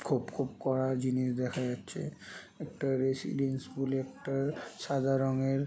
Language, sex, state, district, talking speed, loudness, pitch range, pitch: Bengali, male, West Bengal, Jhargram, 150 wpm, -33 LUFS, 130-135 Hz, 135 Hz